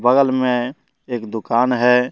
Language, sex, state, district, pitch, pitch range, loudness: Hindi, male, Jharkhand, Deoghar, 125 Hz, 120-125 Hz, -18 LUFS